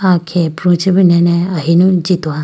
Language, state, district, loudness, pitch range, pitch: Idu Mishmi, Arunachal Pradesh, Lower Dibang Valley, -12 LUFS, 170-180 Hz, 175 Hz